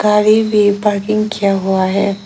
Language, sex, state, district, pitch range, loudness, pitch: Hindi, female, Arunachal Pradesh, Lower Dibang Valley, 200-215 Hz, -14 LUFS, 205 Hz